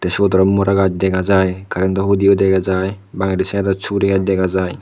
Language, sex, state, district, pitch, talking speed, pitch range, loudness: Chakma, male, Tripura, Unakoti, 95 Hz, 200 wpm, 95-100 Hz, -16 LUFS